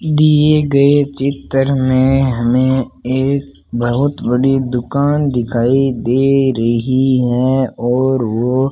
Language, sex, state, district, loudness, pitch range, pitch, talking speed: Hindi, male, Rajasthan, Bikaner, -14 LUFS, 125-140 Hz, 130 Hz, 110 wpm